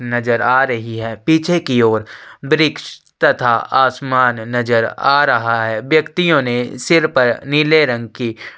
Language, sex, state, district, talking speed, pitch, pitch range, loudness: Hindi, male, Chhattisgarh, Sukma, 155 wpm, 125 Hz, 115-150 Hz, -15 LUFS